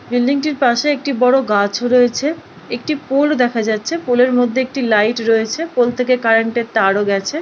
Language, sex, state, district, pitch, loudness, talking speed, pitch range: Bengali, female, West Bengal, Paschim Medinipur, 245 Hz, -16 LUFS, 195 wpm, 225-275 Hz